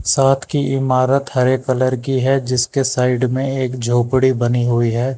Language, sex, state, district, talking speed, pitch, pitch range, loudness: Hindi, male, Karnataka, Bangalore, 175 wpm, 130 Hz, 125-135 Hz, -17 LUFS